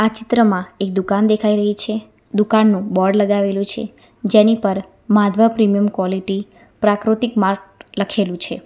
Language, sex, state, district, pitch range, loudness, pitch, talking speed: Gujarati, female, Gujarat, Valsad, 195-215 Hz, -17 LUFS, 205 Hz, 130 wpm